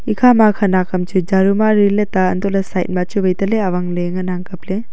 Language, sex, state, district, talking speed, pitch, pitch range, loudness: Wancho, female, Arunachal Pradesh, Longding, 245 wpm, 190 Hz, 185-205 Hz, -16 LUFS